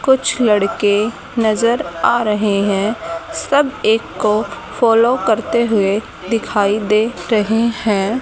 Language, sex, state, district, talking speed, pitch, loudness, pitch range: Hindi, female, Haryana, Charkhi Dadri, 115 wpm, 220 Hz, -16 LUFS, 210-235 Hz